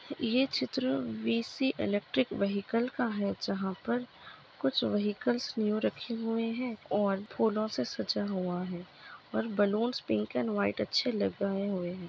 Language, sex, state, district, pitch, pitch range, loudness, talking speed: Hindi, female, Maharashtra, Dhule, 210 Hz, 190-235 Hz, -32 LUFS, 150 wpm